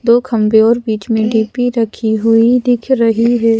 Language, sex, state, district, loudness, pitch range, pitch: Hindi, female, Madhya Pradesh, Bhopal, -13 LUFS, 220-240 Hz, 230 Hz